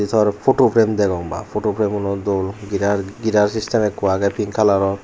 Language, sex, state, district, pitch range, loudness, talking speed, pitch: Chakma, male, Tripura, Unakoti, 100-105 Hz, -19 LUFS, 190 wpm, 105 Hz